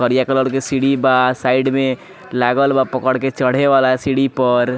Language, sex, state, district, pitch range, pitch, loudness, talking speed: Bhojpuri, male, Bihar, Muzaffarpur, 125-135 Hz, 130 Hz, -16 LUFS, 190 wpm